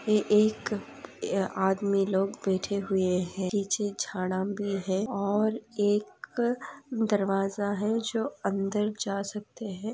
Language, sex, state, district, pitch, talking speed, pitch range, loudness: Hindi, female, Andhra Pradesh, Anantapur, 200 Hz, 125 wpm, 195-210 Hz, -29 LUFS